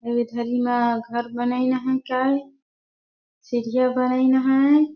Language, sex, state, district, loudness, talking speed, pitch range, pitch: Surgujia, female, Chhattisgarh, Sarguja, -22 LUFS, 95 wpm, 240-260 Hz, 255 Hz